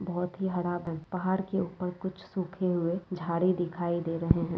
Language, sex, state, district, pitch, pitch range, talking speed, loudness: Hindi, female, West Bengal, Jalpaiguri, 180 Hz, 170-185 Hz, 195 wpm, -31 LUFS